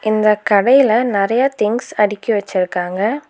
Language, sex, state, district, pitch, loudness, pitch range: Tamil, female, Tamil Nadu, Nilgiris, 215 Hz, -15 LUFS, 200-240 Hz